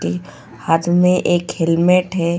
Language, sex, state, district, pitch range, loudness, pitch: Hindi, female, Goa, North and South Goa, 165-180 Hz, -16 LUFS, 170 Hz